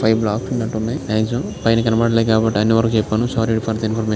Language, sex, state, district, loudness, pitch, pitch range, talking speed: Telugu, male, Andhra Pradesh, Krishna, -18 LUFS, 115 Hz, 110-115 Hz, 245 wpm